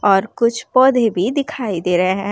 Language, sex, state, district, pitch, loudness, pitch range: Hindi, female, Uttar Pradesh, Jalaun, 225 Hz, -17 LUFS, 190-255 Hz